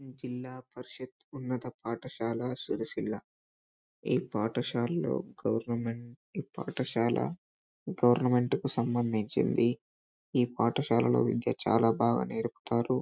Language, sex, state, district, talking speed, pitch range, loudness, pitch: Telugu, male, Telangana, Karimnagar, 85 wpm, 115-125 Hz, -31 LUFS, 120 Hz